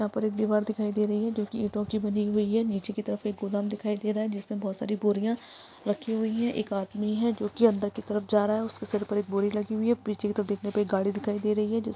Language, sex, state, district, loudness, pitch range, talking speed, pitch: Maithili, female, Bihar, Araria, -29 LUFS, 205-215 Hz, 305 wpm, 210 Hz